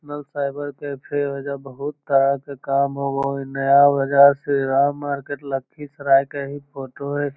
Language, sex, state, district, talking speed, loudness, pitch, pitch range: Magahi, male, Bihar, Lakhisarai, 165 wpm, -21 LUFS, 140 Hz, 140-145 Hz